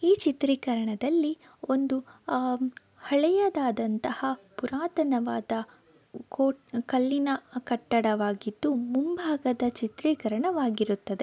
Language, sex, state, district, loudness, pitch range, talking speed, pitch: Kannada, female, Karnataka, Dakshina Kannada, -28 LUFS, 235-290 Hz, 60 wpm, 255 Hz